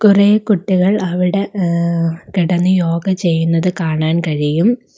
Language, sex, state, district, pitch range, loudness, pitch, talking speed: Malayalam, female, Kerala, Kollam, 165-195 Hz, -15 LUFS, 180 Hz, 110 wpm